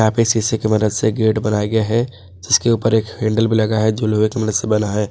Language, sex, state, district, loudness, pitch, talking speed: Hindi, male, Jharkhand, Ranchi, -17 LUFS, 110 Hz, 260 wpm